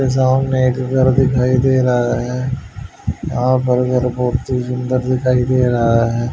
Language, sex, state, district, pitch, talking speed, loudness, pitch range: Hindi, male, Haryana, Rohtak, 125 Hz, 170 wpm, -16 LUFS, 125-130 Hz